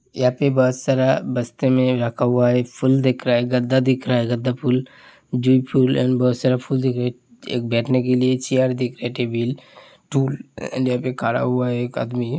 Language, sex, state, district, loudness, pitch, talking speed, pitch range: Hindi, male, Uttar Pradesh, Hamirpur, -20 LUFS, 125 Hz, 220 wpm, 125-130 Hz